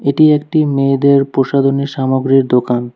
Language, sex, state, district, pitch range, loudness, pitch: Bengali, male, West Bengal, Alipurduar, 130-140 Hz, -13 LUFS, 135 Hz